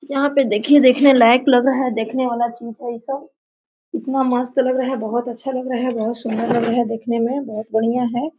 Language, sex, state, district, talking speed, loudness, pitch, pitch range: Hindi, female, Jharkhand, Sahebganj, 235 wpm, -18 LUFS, 250 Hz, 235-270 Hz